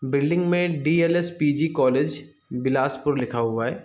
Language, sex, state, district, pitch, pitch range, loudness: Hindi, male, Chhattisgarh, Bilaspur, 145 Hz, 130-165 Hz, -23 LUFS